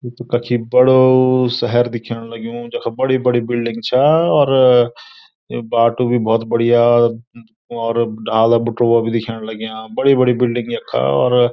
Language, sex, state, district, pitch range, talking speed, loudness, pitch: Garhwali, male, Uttarakhand, Uttarkashi, 115-125 Hz, 155 wpm, -15 LUFS, 120 Hz